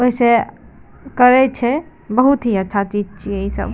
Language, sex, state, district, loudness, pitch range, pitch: Maithili, female, Bihar, Madhepura, -16 LUFS, 205-255 Hz, 240 Hz